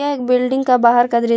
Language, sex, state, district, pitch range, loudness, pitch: Hindi, female, Jharkhand, Palamu, 235-260 Hz, -15 LUFS, 250 Hz